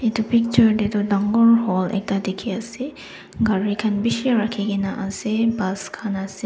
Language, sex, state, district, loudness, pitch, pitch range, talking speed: Nagamese, female, Nagaland, Dimapur, -21 LUFS, 215 Hz, 200-230 Hz, 150 wpm